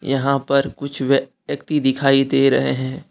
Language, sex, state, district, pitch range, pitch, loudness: Hindi, male, Jharkhand, Deoghar, 135-140 Hz, 135 Hz, -18 LUFS